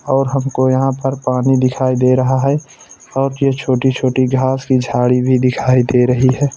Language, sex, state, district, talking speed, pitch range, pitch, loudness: Hindi, male, Uttar Pradesh, Etah, 185 wpm, 130-135 Hz, 130 Hz, -15 LUFS